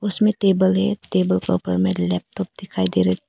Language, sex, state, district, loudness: Hindi, female, Arunachal Pradesh, Papum Pare, -20 LUFS